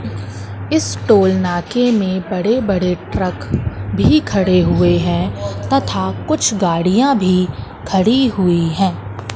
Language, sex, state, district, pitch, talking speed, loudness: Hindi, female, Madhya Pradesh, Katni, 170 Hz, 115 wpm, -16 LUFS